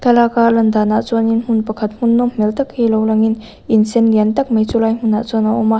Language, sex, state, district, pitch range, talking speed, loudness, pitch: Mizo, female, Mizoram, Aizawl, 220-235 Hz, 280 wpm, -15 LUFS, 225 Hz